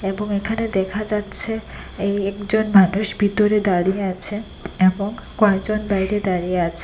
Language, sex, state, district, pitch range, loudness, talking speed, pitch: Bengali, female, Assam, Hailakandi, 190-210 Hz, -20 LUFS, 125 wpm, 200 Hz